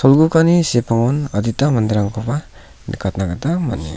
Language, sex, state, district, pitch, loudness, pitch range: Garo, male, Meghalaya, South Garo Hills, 120 Hz, -17 LUFS, 105-145 Hz